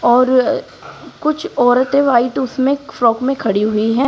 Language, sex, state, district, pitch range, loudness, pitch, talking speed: Hindi, female, Uttar Pradesh, Shamli, 240-275 Hz, -15 LUFS, 255 Hz, 145 wpm